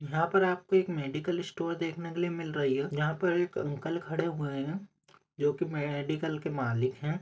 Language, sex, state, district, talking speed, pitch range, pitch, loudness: Hindi, male, Jharkhand, Sahebganj, 200 wpm, 145-175 Hz, 160 Hz, -32 LUFS